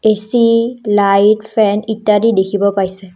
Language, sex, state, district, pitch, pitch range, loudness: Assamese, female, Assam, Kamrup Metropolitan, 210 Hz, 200-220 Hz, -13 LUFS